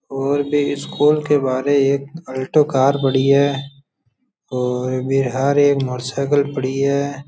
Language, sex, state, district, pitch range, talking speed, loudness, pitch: Rajasthani, male, Rajasthan, Churu, 130-145 Hz, 140 wpm, -18 LUFS, 140 Hz